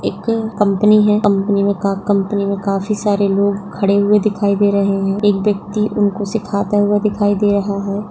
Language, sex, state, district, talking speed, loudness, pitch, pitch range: Hindi, female, Rajasthan, Nagaur, 190 wpm, -16 LUFS, 205 Hz, 200-210 Hz